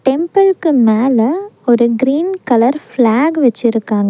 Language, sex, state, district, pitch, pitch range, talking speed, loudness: Tamil, female, Tamil Nadu, Nilgiris, 255 Hz, 235-315 Hz, 100 wpm, -13 LUFS